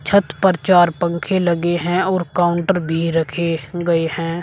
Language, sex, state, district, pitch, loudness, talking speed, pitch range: Hindi, male, Uttar Pradesh, Shamli, 175 Hz, -18 LUFS, 160 wpm, 165-180 Hz